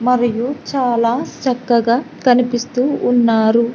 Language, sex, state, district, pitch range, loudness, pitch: Telugu, female, Andhra Pradesh, Sri Satya Sai, 235-255 Hz, -16 LUFS, 245 Hz